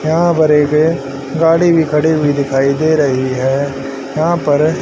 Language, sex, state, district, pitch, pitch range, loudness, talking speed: Hindi, male, Haryana, Charkhi Dadri, 150 Hz, 135-160 Hz, -13 LUFS, 135 wpm